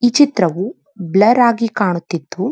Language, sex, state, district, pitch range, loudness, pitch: Kannada, female, Karnataka, Dharwad, 180-240 Hz, -15 LUFS, 210 Hz